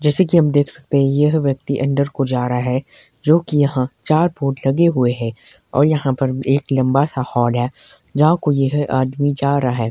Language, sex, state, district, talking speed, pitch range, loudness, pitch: Hindi, male, Himachal Pradesh, Shimla, 210 wpm, 130-145 Hz, -17 LUFS, 140 Hz